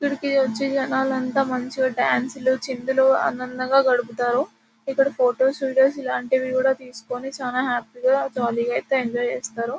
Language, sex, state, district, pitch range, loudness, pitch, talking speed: Telugu, female, Telangana, Nalgonda, 250-265 Hz, -22 LUFS, 260 Hz, 130 wpm